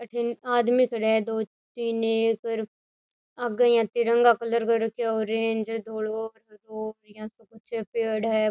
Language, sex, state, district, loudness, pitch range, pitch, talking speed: Rajasthani, female, Rajasthan, Nagaur, -26 LUFS, 220-235 Hz, 225 Hz, 135 wpm